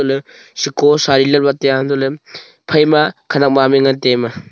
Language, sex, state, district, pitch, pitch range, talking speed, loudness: Wancho, male, Arunachal Pradesh, Longding, 140 Hz, 135-145 Hz, 200 wpm, -14 LUFS